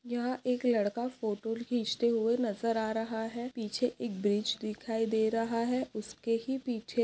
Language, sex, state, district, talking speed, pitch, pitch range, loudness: Hindi, female, Maharashtra, Nagpur, 170 wpm, 230 Hz, 220-240 Hz, -33 LUFS